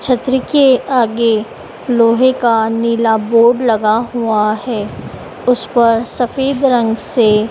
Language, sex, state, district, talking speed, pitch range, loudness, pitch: Hindi, female, Madhya Pradesh, Dhar, 120 wpm, 225-250 Hz, -13 LUFS, 235 Hz